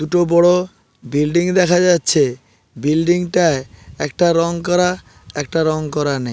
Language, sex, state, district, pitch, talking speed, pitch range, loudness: Bengali, male, West Bengal, Paschim Medinipur, 165 Hz, 135 wpm, 140-175 Hz, -16 LUFS